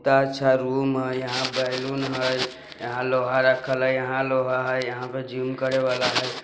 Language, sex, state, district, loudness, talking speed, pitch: Bajjika, male, Bihar, Vaishali, -24 LUFS, 185 wpm, 130 Hz